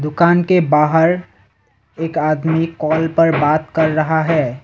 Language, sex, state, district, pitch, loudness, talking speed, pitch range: Hindi, male, Assam, Sonitpur, 160 Hz, -15 LUFS, 140 wpm, 150-165 Hz